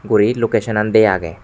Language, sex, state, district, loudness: Chakma, male, Tripura, West Tripura, -15 LUFS